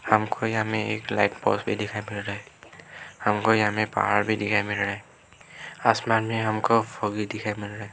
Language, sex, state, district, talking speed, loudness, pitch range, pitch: Hindi, male, Arunachal Pradesh, Lower Dibang Valley, 210 wpm, -25 LUFS, 105-110 Hz, 105 Hz